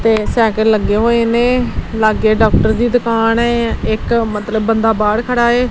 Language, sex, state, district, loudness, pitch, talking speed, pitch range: Punjabi, female, Punjab, Kapurthala, -14 LUFS, 225 Hz, 170 wpm, 220-235 Hz